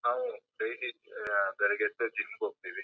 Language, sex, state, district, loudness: Kannada, male, Karnataka, Chamarajanagar, -33 LUFS